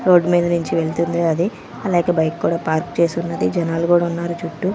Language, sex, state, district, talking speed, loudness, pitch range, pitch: Telugu, female, Andhra Pradesh, Manyam, 190 wpm, -19 LUFS, 165-175 Hz, 170 Hz